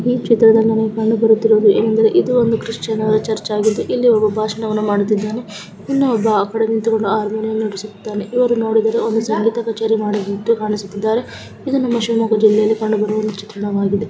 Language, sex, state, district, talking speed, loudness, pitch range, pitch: Kannada, female, Karnataka, Shimoga, 140 wpm, -16 LUFS, 210-225 Hz, 220 Hz